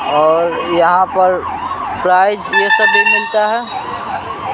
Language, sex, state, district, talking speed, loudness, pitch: Hindi, male, Bihar, Patna, 120 wpm, -13 LUFS, 215 Hz